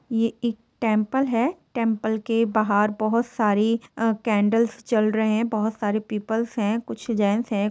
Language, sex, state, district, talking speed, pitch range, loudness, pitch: Hindi, female, Jharkhand, Sahebganj, 165 wpm, 215-230 Hz, -23 LUFS, 220 Hz